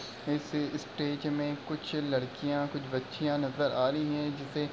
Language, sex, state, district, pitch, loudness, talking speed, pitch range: Hindi, male, Uttar Pradesh, Varanasi, 145 Hz, -33 LUFS, 165 wpm, 140-150 Hz